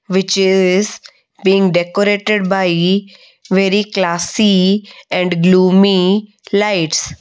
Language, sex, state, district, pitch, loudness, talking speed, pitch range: English, female, Odisha, Malkangiri, 190 Hz, -14 LUFS, 85 wpm, 185-205 Hz